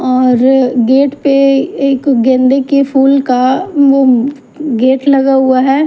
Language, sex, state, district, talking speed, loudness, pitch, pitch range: Hindi, female, Haryana, Jhajjar, 135 wpm, -10 LUFS, 270 Hz, 255-275 Hz